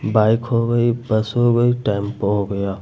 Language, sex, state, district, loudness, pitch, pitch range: Hindi, male, Uttar Pradesh, Lucknow, -18 LUFS, 110 Hz, 105-120 Hz